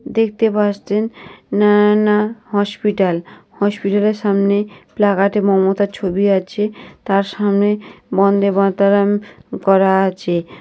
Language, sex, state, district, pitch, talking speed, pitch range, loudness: Bengali, female, West Bengal, North 24 Parganas, 205 Hz, 90 wpm, 195-210 Hz, -16 LUFS